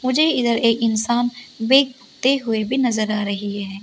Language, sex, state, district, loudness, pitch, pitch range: Hindi, female, Arunachal Pradesh, Lower Dibang Valley, -19 LUFS, 240 Hz, 215-255 Hz